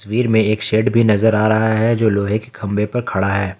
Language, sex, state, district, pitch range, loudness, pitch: Hindi, male, Jharkhand, Ranchi, 105-115 Hz, -16 LUFS, 110 Hz